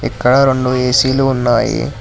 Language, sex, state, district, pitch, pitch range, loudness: Telugu, male, Telangana, Hyderabad, 125 Hz, 125-135 Hz, -13 LUFS